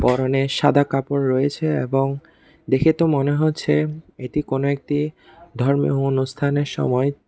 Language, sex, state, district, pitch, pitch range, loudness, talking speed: Bengali, male, Tripura, West Tripura, 140 Hz, 135-150 Hz, -20 LUFS, 125 wpm